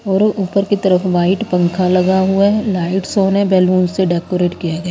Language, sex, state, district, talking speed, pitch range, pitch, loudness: Hindi, female, Haryana, Rohtak, 205 wpm, 180-195 Hz, 185 Hz, -15 LUFS